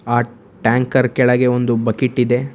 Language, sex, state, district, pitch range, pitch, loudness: Kannada, male, Karnataka, Bangalore, 120-125 Hz, 125 Hz, -16 LUFS